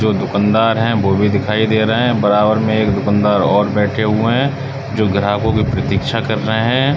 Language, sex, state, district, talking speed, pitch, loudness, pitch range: Hindi, male, Uttar Pradesh, Budaun, 205 wpm, 110 Hz, -15 LUFS, 105-115 Hz